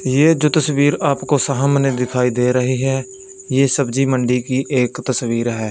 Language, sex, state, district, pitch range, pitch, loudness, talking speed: Hindi, male, Punjab, Fazilka, 125-145 Hz, 135 Hz, -17 LUFS, 170 wpm